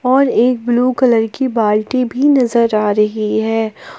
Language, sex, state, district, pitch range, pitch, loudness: Hindi, female, Jharkhand, Palamu, 215-255 Hz, 235 Hz, -14 LUFS